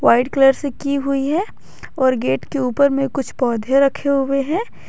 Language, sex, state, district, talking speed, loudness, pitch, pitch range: Hindi, female, Jharkhand, Garhwa, 195 wpm, -18 LUFS, 275 Hz, 260-280 Hz